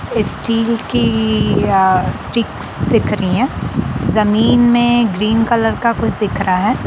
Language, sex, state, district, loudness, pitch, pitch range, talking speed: Hindi, female, Bihar, Sitamarhi, -15 LUFS, 225 Hz, 190-235 Hz, 130 wpm